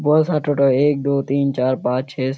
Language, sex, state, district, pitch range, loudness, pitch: Hindi, male, Bihar, Kishanganj, 130-145 Hz, -18 LUFS, 140 Hz